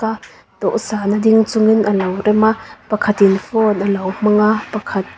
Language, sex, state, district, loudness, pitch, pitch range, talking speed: Mizo, female, Mizoram, Aizawl, -15 LUFS, 215 Hz, 200-220 Hz, 175 wpm